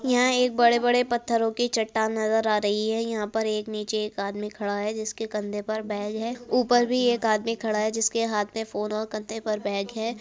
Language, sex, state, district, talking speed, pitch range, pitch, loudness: Hindi, female, Bihar, Araria, 225 wpm, 210-230 Hz, 220 Hz, -25 LUFS